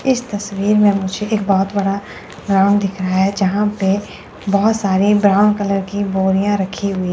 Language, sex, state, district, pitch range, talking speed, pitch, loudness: Hindi, female, Chandigarh, Chandigarh, 195-205 Hz, 175 wpm, 200 Hz, -16 LUFS